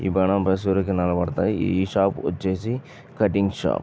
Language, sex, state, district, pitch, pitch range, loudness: Telugu, male, Andhra Pradesh, Chittoor, 95 Hz, 95-100 Hz, -23 LUFS